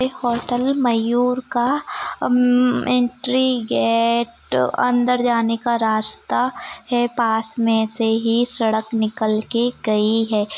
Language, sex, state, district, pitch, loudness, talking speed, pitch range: Hindi, female, Maharashtra, Chandrapur, 235 Hz, -19 LUFS, 120 wpm, 225-250 Hz